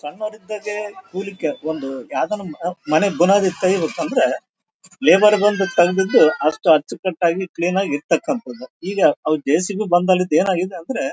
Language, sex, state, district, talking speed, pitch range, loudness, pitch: Kannada, male, Karnataka, Bellary, 140 wpm, 155-200 Hz, -19 LUFS, 180 Hz